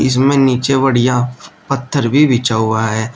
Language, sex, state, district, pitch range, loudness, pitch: Hindi, male, Uttar Pradesh, Shamli, 115-135 Hz, -14 LUFS, 125 Hz